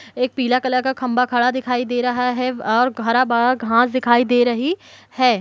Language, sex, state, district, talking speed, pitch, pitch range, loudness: Hindi, female, Bihar, Kishanganj, 190 wpm, 250 Hz, 240-255 Hz, -18 LUFS